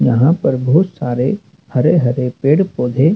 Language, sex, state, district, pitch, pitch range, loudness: Hindi, male, Madhya Pradesh, Dhar, 140 Hz, 125-170 Hz, -15 LUFS